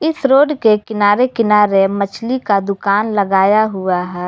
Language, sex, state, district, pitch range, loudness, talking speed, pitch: Hindi, female, Jharkhand, Garhwa, 195-230 Hz, -14 LUFS, 155 wpm, 210 Hz